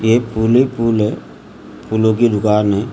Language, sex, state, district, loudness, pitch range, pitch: Hindi, male, Maharashtra, Gondia, -15 LUFS, 105-115 Hz, 110 Hz